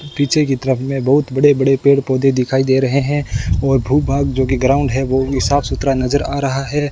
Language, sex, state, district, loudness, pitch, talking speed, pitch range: Hindi, male, Rajasthan, Bikaner, -15 LUFS, 135 Hz, 240 wpm, 130-140 Hz